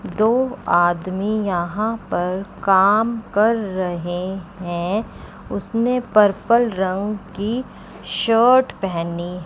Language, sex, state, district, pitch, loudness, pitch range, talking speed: Hindi, female, Chandigarh, Chandigarh, 200 Hz, -20 LUFS, 180-225 Hz, 90 wpm